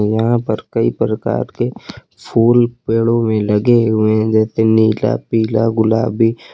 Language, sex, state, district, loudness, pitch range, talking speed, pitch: Hindi, male, Uttar Pradesh, Lucknow, -15 LUFS, 110-115 Hz, 140 wpm, 110 Hz